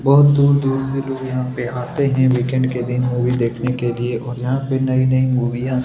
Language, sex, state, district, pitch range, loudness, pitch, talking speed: Hindi, male, Chhattisgarh, Kabirdham, 125-135 Hz, -18 LUFS, 130 Hz, 225 wpm